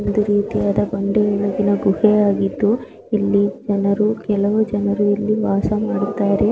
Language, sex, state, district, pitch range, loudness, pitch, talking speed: Kannada, male, Karnataka, Bijapur, 200-210 Hz, -18 LUFS, 205 Hz, 120 wpm